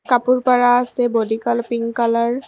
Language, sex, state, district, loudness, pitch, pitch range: Assamese, female, Assam, Kamrup Metropolitan, -17 LUFS, 240 Hz, 235-250 Hz